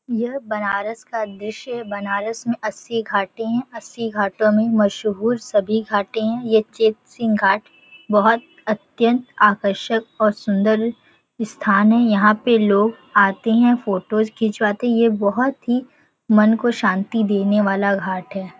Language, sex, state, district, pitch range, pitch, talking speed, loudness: Hindi, female, Uttar Pradesh, Varanasi, 205-230 Hz, 220 Hz, 150 wpm, -19 LUFS